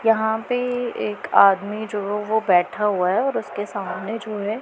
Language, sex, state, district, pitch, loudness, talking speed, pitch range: Hindi, female, Punjab, Pathankot, 210 Hz, -21 LUFS, 180 wpm, 200-225 Hz